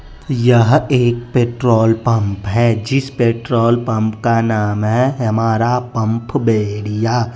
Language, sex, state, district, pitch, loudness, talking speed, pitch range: Hindi, male, Bihar, West Champaran, 115 Hz, -15 LUFS, 115 wpm, 110-120 Hz